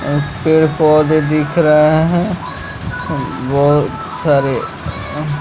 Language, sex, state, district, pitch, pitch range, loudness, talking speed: Hindi, male, Bihar, West Champaran, 150 Hz, 140-155 Hz, -14 LUFS, 110 wpm